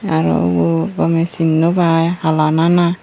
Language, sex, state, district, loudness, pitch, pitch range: Chakma, female, Tripura, Unakoti, -15 LUFS, 165 Hz, 155-170 Hz